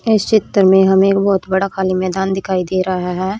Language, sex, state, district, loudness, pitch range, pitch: Hindi, female, Haryana, Rohtak, -15 LUFS, 185-195 Hz, 190 Hz